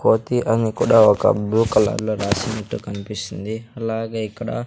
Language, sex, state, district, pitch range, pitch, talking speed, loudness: Telugu, male, Andhra Pradesh, Sri Satya Sai, 105-115 Hz, 110 Hz, 140 wpm, -20 LUFS